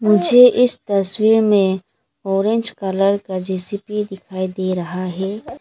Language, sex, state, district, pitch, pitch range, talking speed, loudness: Hindi, female, Arunachal Pradesh, Lower Dibang Valley, 195 Hz, 185-215 Hz, 130 wpm, -17 LUFS